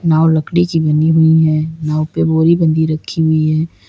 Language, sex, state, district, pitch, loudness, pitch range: Hindi, female, Uttar Pradesh, Lalitpur, 160 Hz, -13 LUFS, 155-160 Hz